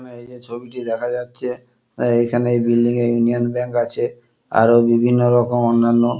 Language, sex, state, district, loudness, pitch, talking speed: Bengali, male, West Bengal, Kolkata, -18 LUFS, 120 Hz, 165 wpm